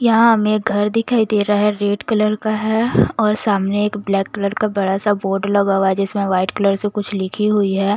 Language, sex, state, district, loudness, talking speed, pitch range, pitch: Hindi, male, Odisha, Nuapada, -17 LUFS, 240 wpm, 195-215 Hz, 205 Hz